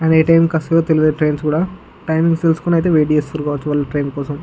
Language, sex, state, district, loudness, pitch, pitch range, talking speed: Telugu, male, Andhra Pradesh, Guntur, -16 LUFS, 160 Hz, 150-165 Hz, 150 wpm